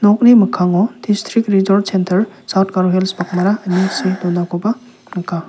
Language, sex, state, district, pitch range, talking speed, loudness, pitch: Garo, male, Meghalaya, South Garo Hills, 180-210 Hz, 140 wpm, -15 LUFS, 190 Hz